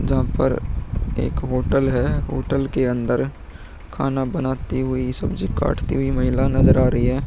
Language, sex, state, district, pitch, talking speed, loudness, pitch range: Hindi, male, Uttar Pradesh, Muzaffarnagar, 130 Hz, 155 wpm, -21 LUFS, 120-130 Hz